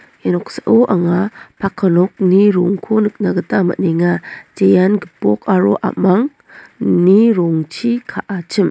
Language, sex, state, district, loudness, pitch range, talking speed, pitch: Garo, female, Meghalaya, West Garo Hills, -15 LUFS, 175-205 Hz, 105 wpm, 190 Hz